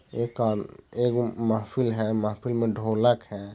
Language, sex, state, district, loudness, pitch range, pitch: Hindi, male, Bihar, Jahanabad, -26 LUFS, 110-120 Hz, 115 Hz